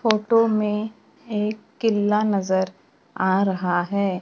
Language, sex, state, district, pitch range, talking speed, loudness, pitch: Hindi, male, Maharashtra, Gondia, 190-220 Hz, 115 wpm, -22 LUFS, 210 Hz